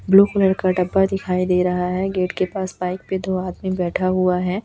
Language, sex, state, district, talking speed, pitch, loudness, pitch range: Hindi, female, Chhattisgarh, Raipur, 230 wpm, 185 Hz, -20 LUFS, 180-190 Hz